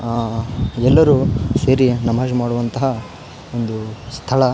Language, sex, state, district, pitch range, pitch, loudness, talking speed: Kannada, male, Karnataka, Raichur, 115-130 Hz, 120 Hz, -17 LUFS, 105 wpm